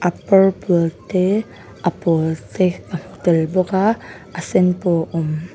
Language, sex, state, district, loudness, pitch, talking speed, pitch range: Mizo, female, Mizoram, Aizawl, -18 LUFS, 180 Hz, 160 wpm, 165-190 Hz